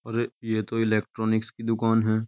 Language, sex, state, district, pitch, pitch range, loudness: Hindi, male, Uttar Pradesh, Jyotiba Phule Nagar, 115 Hz, 110-115 Hz, -26 LUFS